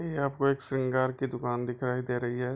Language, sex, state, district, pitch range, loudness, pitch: Hindi, male, Bihar, Bhagalpur, 125-135 Hz, -30 LUFS, 130 Hz